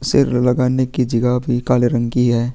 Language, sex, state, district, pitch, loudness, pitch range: Hindi, male, Chhattisgarh, Sukma, 125 Hz, -17 LUFS, 120-130 Hz